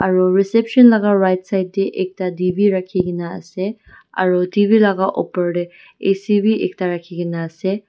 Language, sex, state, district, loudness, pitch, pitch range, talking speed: Nagamese, female, Nagaland, Dimapur, -17 LUFS, 190 Hz, 180-205 Hz, 175 wpm